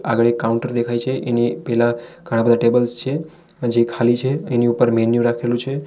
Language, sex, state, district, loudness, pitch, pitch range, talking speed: Gujarati, male, Gujarat, Valsad, -18 LUFS, 120 Hz, 120-130 Hz, 195 wpm